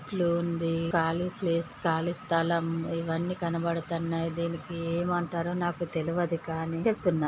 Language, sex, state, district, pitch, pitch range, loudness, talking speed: Telugu, female, Andhra Pradesh, Guntur, 170 Hz, 165-175 Hz, -30 LUFS, 115 wpm